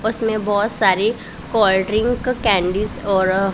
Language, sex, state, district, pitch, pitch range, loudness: Hindi, female, Punjab, Pathankot, 210 Hz, 195-225 Hz, -18 LUFS